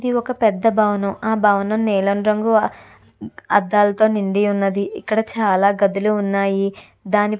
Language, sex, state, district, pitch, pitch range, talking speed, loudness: Telugu, female, Andhra Pradesh, Chittoor, 205 Hz, 195-215 Hz, 145 wpm, -18 LUFS